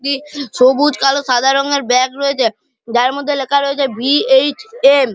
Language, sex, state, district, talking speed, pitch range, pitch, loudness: Bengali, male, West Bengal, Malda, 150 wpm, 255-280 Hz, 275 Hz, -14 LUFS